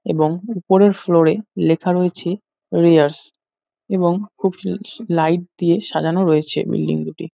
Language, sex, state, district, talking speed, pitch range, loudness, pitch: Bengali, male, West Bengal, North 24 Parganas, 130 wpm, 160-195 Hz, -18 LUFS, 175 Hz